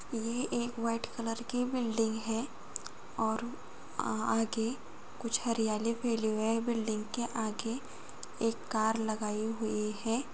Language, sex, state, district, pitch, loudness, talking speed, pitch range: Hindi, female, Bihar, Gopalganj, 225 Hz, -34 LUFS, 135 wpm, 220-235 Hz